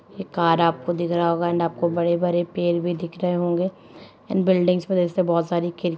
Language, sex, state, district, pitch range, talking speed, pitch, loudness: Hindi, male, Bihar, Sitamarhi, 170-180 Hz, 210 wpm, 175 Hz, -22 LUFS